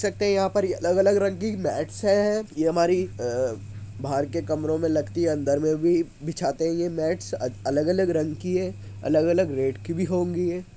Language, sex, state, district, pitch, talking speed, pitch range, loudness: Hindi, male, Uttar Pradesh, Muzaffarnagar, 165 Hz, 200 wpm, 140-185 Hz, -25 LUFS